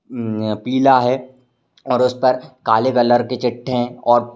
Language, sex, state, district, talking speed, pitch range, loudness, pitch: Hindi, male, Uttar Pradesh, Varanasi, 180 wpm, 120-130 Hz, -17 LUFS, 125 Hz